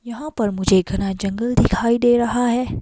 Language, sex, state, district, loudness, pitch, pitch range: Hindi, female, Himachal Pradesh, Shimla, -19 LUFS, 235 Hz, 195-240 Hz